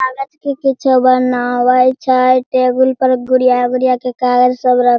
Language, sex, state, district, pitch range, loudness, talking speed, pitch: Hindi, female, Bihar, Sitamarhi, 250-260 Hz, -13 LUFS, 155 wpm, 255 Hz